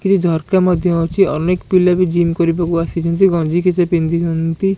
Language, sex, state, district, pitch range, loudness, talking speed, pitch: Odia, male, Odisha, Khordha, 165-180 Hz, -15 LUFS, 165 wpm, 175 Hz